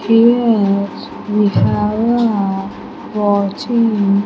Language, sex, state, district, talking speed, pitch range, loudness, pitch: English, female, Andhra Pradesh, Sri Satya Sai, 85 wpm, 200-230 Hz, -15 LUFS, 210 Hz